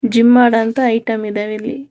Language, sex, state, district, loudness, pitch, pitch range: Kannada, female, Karnataka, Bangalore, -14 LUFS, 230 Hz, 225-245 Hz